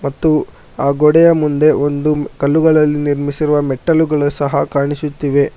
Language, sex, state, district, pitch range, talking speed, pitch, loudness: Kannada, male, Karnataka, Bangalore, 140-155 Hz, 110 wpm, 145 Hz, -14 LUFS